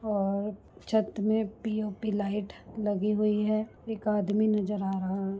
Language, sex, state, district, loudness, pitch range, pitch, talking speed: Hindi, female, Bihar, Gaya, -30 LUFS, 200-215 Hz, 210 Hz, 155 wpm